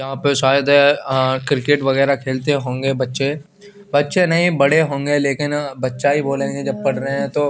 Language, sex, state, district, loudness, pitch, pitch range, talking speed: Hindi, male, Chandigarh, Chandigarh, -17 LUFS, 140 Hz, 135-145 Hz, 170 wpm